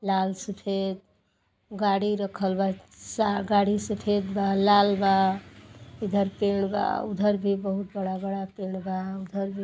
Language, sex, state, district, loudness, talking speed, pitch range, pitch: Bhojpuri, female, Uttar Pradesh, Gorakhpur, -26 LUFS, 150 wpm, 190-200 Hz, 195 Hz